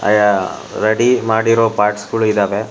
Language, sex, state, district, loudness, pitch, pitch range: Kannada, male, Karnataka, Shimoga, -15 LUFS, 105 Hz, 105-115 Hz